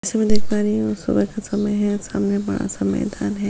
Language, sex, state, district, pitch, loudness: Hindi, female, Chhattisgarh, Sukma, 195 Hz, -22 LUFS